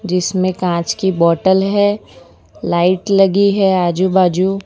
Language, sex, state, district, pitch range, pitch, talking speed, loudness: Hindi, female, Gujarat, Valsad, 180-195 Hz, 190 Hz, 140 wpm, -14 LUFS